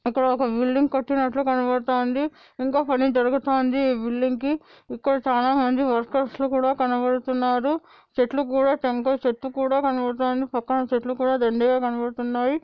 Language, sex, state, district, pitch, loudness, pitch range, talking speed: Telugu, female, Andhra Pradesh, Anantapur, 260 Hz, -23 LUFS, 250-270 Hz, 120 wpm